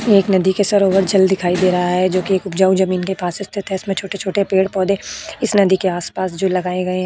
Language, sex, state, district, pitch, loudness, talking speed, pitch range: Hindi, female, Uttar Pradesh, Budaun, 190 Hz, -17 LUFS, 245 wpm, 185-195 Hz